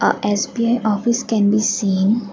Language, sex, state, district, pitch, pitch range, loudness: English, female, Assam, Kamrup Metropolitan, 215 Hz, 205-235 Hz, -18 LUFS